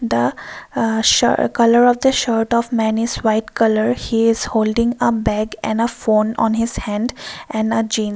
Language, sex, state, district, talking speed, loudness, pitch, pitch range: English, female, Assam, Kamrup Metropolitan, 190 wpm, -17 LUFS, 225 Hz, 220-235 Hz